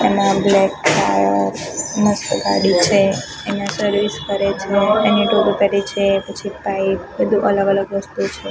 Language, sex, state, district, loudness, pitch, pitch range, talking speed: Gujarati, female, Gujarat, Gandhinagar, -17 LUFS, 195 Hz, 180-200 Hz, 115 wpm